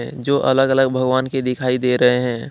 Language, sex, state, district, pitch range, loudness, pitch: Hindi, male, Jharkhand, Deoghar, 125-135 Hz, -17 LUFS, 130 Hz